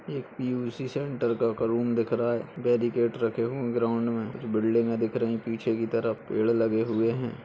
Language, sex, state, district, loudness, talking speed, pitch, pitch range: Hindi, male, Maharashtra, Solapur, -28 LUFS, 210 wpm, 115 Hz, 115-120 Hz